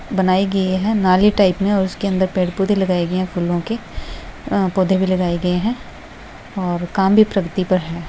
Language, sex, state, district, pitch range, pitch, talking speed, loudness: Hindi, female, Bihar, Begusarai, 180-195 Hz, 190 Hz, 200 wpm, -18 LUFS